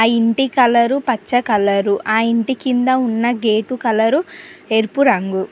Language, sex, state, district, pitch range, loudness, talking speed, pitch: Telugu, female, Telangana, Mahabubabad, 220-255 Hz, -16 LUFS, 130 wpm, 230 Hz